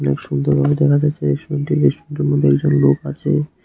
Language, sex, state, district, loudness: Bengali, male, Tripura, West Tripura, -17 LUFS